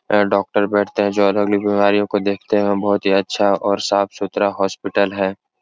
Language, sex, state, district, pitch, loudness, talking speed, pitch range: Hindi, male, Uttar Pradesh, Etah, 100 Hz, -18 LUFS, 180 wpm, 100-105 Hz